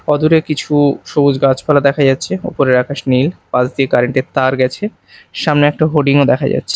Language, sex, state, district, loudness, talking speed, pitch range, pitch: Bengali, male, Odisha, Malkangiri, -14 LUFS, 185 wpm, 130-150 Hz, 140 Hz